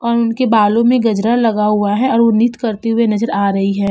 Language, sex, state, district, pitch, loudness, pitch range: Hindi, female, Uttar Pradesh, Jalaun, 225 Hz, -14 LUFS, 210-235 Hz